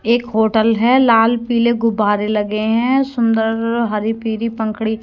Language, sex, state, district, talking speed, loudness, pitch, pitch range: Hindi, female, Haryana, Rohtak, 145 wpm, -16 LUFS, 225 Hz, 220-235 Hz